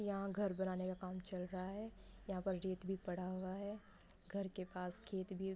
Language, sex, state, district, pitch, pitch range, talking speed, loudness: Hindi, female, Uttar Pradesh, Budaun, 190 Hz, 185-195 Hz, 225 wpm, -45 LUFS